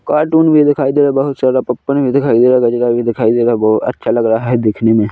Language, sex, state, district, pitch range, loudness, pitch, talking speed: Hindi, male, Chhattisgarh, Korba, 115-140 Hz, -13 LUFS, 125 Hz, 280 wpm